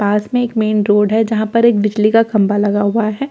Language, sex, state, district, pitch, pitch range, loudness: Hindi, female, Bihar, Katihar, 215 Hz, 205-225 Hz, -14 LUFS